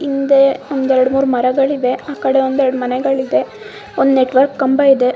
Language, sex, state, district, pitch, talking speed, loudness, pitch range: Kannada, female, Karnataka, Mysore, 270 Hz, 175 wpm, -14 LUFS, 260-275 Hz